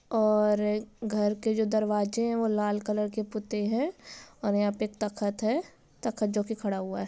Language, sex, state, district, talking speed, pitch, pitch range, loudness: Hindi, female, Bihar, Gopalganj, 195 wpm, 215 Hz, 210-220 Hz, -29 LUFS